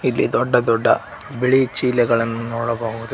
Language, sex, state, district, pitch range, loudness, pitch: Kannada, male, Karnataka, Koppal, 115-125 Hz, -18 LUFS, 115 Hz